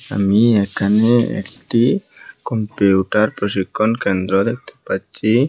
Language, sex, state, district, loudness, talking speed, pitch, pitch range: Bengali, male, Assam, Hailakandi, -17 LUFS, 85 wpm, 105 Hz, 100-110 Hz